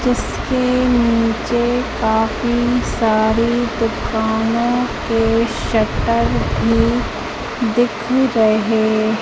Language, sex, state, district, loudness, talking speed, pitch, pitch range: Hindi, female, Madhya Pradesh, Katni, -17 LUFS, 65 wpm, 225 Hz, 220-240 Hz